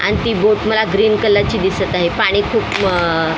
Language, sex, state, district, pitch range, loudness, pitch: Marathi, female, Maharashtra, Mumbai Suburban, 180-215 Hz, -15 LUFS, 205 Hz